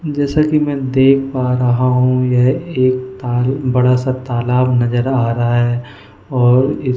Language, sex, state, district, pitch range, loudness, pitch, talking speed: Hindi, male, Goa, North and South Goa, 125-135 Hz, -15 LUFS, 125 Hz, 155 wpm